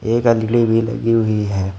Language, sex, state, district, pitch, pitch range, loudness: Hindi, male, Uttar Pradesh, Shamli, 115 Hz, 105-115 Hz, -17 LUFS